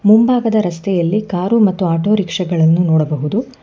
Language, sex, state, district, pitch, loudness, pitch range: Kannada, female, Karnataka, Bangalore, 185 Hz, -15 LUFS, 170-215 Hz